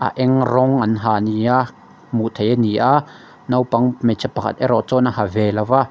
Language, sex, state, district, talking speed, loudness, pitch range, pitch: Mizo, male, Mizoram, Aizawl, 205 wpm, -18 LUFS, 110-130 Hz, 125 Hz